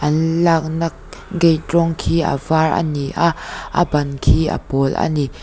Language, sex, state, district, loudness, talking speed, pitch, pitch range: Mizo, female, Mizoram, Aizawl, -18 LUFS, 190 wpm, 160 Hz, 145-165 Hz